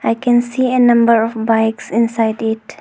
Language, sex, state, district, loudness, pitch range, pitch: English, female, Arunachal Pradesh, Longding, -15 LUFS, 225-240 Hz, 230 Hz